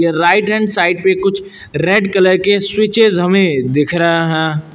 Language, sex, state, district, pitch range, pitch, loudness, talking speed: Hindi, male, Uttar Pradesh, Lucknow, 165-200 Hz, 185 Hz, -13 LUFS, 165 wpm